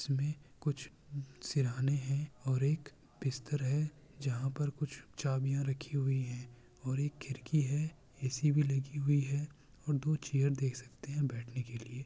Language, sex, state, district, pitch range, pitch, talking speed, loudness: Urdu, male, Bihar, Kishanganj, 130-145 Hz, 140 Hz, 165 wpm, -36 LUFS